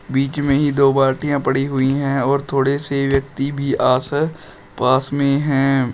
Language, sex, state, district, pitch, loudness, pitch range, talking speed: Hindi, male, Uttar Pradesh, Shamli, 140 Hz, -18 LUFS, 135-140 Hz, 180 wpm